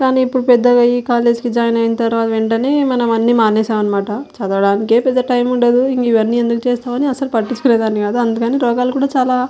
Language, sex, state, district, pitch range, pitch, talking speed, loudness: Telugu, female, Andhra Pradesh, Anantapur, 225-250 Hz, 240 Hz, 195 wpm, -14 LUFS